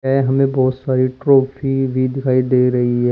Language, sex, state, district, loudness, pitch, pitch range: Hindi, male, Uttar Pradesh, Shamli, -16 LUFS, 130 Hz, 130-135 Hz